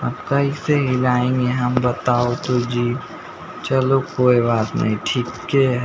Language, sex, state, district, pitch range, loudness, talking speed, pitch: Hindi, male, Bihar, Patna, 120-130 Hz, -19 LUFS, 155 wpm, 125 Hz